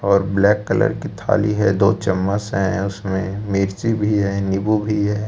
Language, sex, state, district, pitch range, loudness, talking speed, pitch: Hindi, male, Chhattisgarh, Raipur, 95-105 Hz, -19 LUFS, 180 wpm, 100 Hz